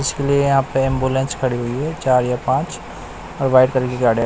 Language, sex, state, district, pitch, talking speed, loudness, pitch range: Hindi, male, Chandigarh, Chandigarh, 130 Hz, 210 wpm, -18 LUFS, 125-135 Hz